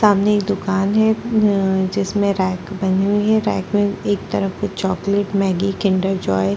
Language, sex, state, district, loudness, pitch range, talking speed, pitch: Hindi, female, Chhattisgarh, Bastar, -18 LUFS, 190-205 Hz, 175 wpm, 200 Hz